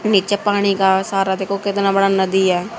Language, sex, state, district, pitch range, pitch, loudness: Hindi, female, Haryana, Charkhi Dadri, 190-200 Hz, 195 Hz, -17 LUFS